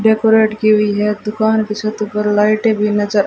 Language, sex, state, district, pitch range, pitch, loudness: Hindi, female, Rajasthan, Bikaner, 210-220 Hz, 215 Hz, -15 LUFS